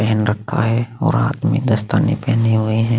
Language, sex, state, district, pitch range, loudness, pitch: Hindi, male, Chhattisgarh, Sukma, 110-125 Hz, -17 LUFS, 115 Hz